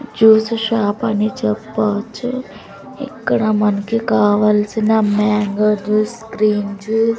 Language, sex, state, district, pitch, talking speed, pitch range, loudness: Telugu, female, Andhra Pradesh, Sri Satya Sai, 215 Hz, 90 wpm, 210-225 Hz, -16 LUFS